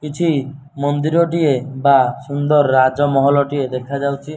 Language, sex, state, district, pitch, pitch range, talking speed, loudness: Odia, male, Odisha, Nuapada, 140 Hz, 135-150 Hz, 135 wpm, -16 LUFS